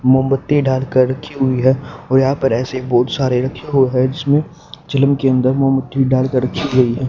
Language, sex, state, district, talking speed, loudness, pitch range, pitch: Hindi, male, Haryana, Jhajjar, 205 wpm, -16 LUFS, 130-135 Hz, 130 Hz